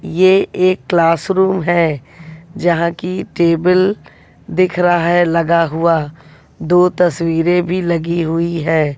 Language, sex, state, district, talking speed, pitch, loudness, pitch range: Hindi, female, Delhi, New Delhi, 125 wpm, 170 Hz, -15 LUFS, 165-180 Hz